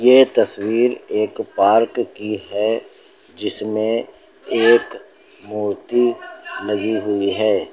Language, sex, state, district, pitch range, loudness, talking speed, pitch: Hindi, male, Uttar Pradesh, Lucknow, 105-120 Hz, -18 LUFS, 95 wpm, 110 Hz